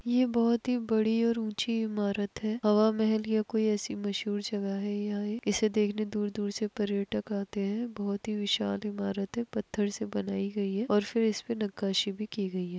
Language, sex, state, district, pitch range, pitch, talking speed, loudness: Hindi, female, Uttar Pradesh, Etah, 200-220 Hz, 210 Hz, 205 wpm, -30 LUFS